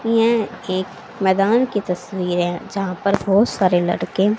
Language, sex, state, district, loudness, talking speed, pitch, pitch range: Hindi, female, Haryana, Charkhi Dadri, -19 LUFS, 150 wpm, 195 Hz, 180-210 Hz